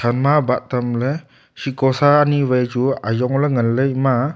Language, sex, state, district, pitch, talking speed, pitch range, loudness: Wancho, male, Arunachal Pradesh, Longding, 130 Hz, 135 wpm, 125-140 Hz, -17 LUFS